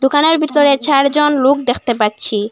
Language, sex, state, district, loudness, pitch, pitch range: Bengali, female, Assam, Hailakandi, -13 LUFS, 275 Hz, 240-295 Hz